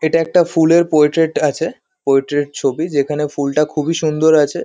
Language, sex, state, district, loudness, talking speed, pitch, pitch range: Bengali, male, West Bengal, Kolkata, -15 LUFS, 155 wpm, 155 Hz, 145-165 Hz